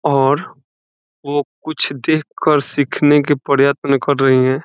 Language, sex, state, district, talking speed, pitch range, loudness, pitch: Hindi, male, Bihar, Saran, 130 wpm, 135-145 Hz, -16 LUFS, 140 Hz